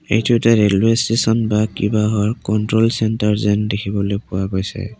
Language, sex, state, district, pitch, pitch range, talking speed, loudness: Assamese, male, Assam, Kamrup Metropolitan, 105 Hz, 105-115 Hz, 145 wpm, -17 LUFS